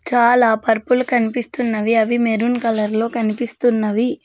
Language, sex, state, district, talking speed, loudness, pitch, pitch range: Telugu, female, Telangana, Mahabubabad, 115 wpm, -17 LUFS, 235 Hz, 220-245 Hz